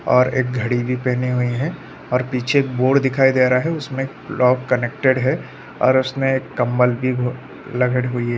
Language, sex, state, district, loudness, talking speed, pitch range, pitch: Hindi, male, Bihar, Araria, -19 LUFS, 195 wpm, 125-135 Hz, 125 Hz